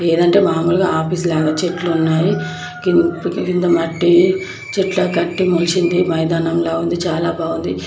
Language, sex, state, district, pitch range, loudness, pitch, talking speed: Telugu, female, Andhra Pradesh, Chittoor, 165-180 Hz, -16 LUFS, 170 Hz, 115 wpm